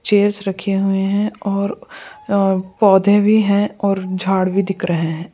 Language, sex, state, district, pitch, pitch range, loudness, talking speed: Hindi, female, Goa, North and South Goa, 195 Hz, 190-205 Hz, -17 LUFS, 170 wpm